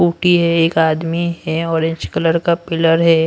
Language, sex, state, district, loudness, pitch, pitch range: Hindi, male, Punjab, Pathankot, -16 LUFS, 165 Hz, 165-170 Hz